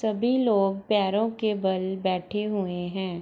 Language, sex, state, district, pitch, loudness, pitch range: Hindi, female, Bihar, East Champaran, 195 Hz, -26 LUFS, 185-215 Hz